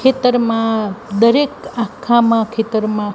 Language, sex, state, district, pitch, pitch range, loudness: Gujarati, female, Gujarat, Gandhinagar, 230 Hz, 220-240 Hz, -16 LUFS